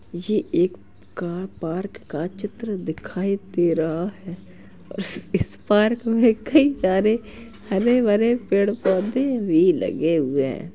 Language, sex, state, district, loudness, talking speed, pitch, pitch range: Hindi, male, Uttar Pradesh, Jalaun, -22 LUFS, 125 wpm, 200 Hz, 175-230 Hz